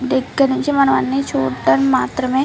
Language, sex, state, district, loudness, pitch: Telugu, female, Andhra Pradesh, Chittoor, -16 LUFS, 265 Hz